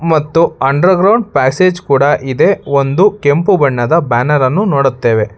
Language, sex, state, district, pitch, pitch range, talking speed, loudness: Kannada, male, Karnataka, Bangalore, 145 Hz, 135-185 Hz, 135 wpm, -11 LUFS